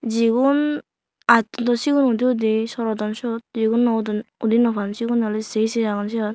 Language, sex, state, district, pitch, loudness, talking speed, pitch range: Chakma, female, Tripura, Unakoti, 230 Hz, -21 LUFS, 190 wpm, 220-240 Hz